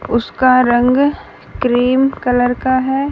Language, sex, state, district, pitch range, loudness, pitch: Hindi, female, Haryana, Rohtak, 245-265 Hz, -14 LUFS, 255 Hz